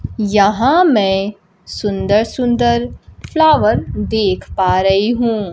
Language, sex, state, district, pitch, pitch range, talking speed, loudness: Hindi, female, Bihar, Kaimur, 210 Hz, 195-240 Hz, 100 wpm, -14 LUFS